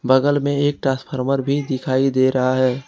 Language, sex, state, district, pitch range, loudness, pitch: Hindi, male, Jharkhand, Ranchi, 130-140 Hz, -19 LUFS, 135 Hz